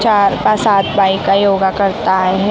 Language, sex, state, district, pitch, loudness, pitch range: Marathi, female, Maharashtra, Mumbai Suburban, 195 Hz, -13 LUFS, 195-205 Hz